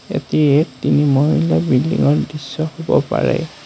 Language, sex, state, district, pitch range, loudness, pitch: Assamese, male, Assam, Kamrup Metropolitan, 140-155 Hz, -16 LUFS, 150 Hz